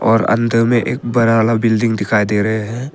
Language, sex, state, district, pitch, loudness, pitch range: Hindi, male, Arunachal Pradesh, Papum Pare, 115 Hz, -15 LUFS, 110-115 Hz